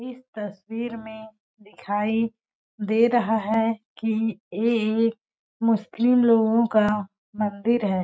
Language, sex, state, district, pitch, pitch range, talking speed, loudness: Hindi, female, Chhattisgarh, Balrampur, 225 Hz, 210-230 Hz, 110 wpm, -23 LUFS